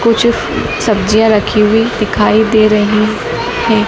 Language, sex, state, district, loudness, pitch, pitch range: Hindi, female, Madhya Pradesh, Dhar, -11 LUFS, 220 Hz, 210-225 Hz